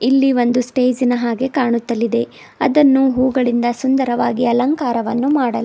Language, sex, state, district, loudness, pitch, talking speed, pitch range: Kannada, female, Karnataka, Bidar, -16 LUFS, 250 Hz, 125 wpm, 240-265 Hz